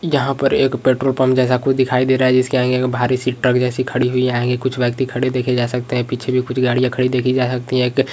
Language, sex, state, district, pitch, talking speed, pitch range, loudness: Hindi, male, Uttarakhand, Uttarkashi, 125 Hz, 295 wpm, 125-130 Hz, -17 LUFS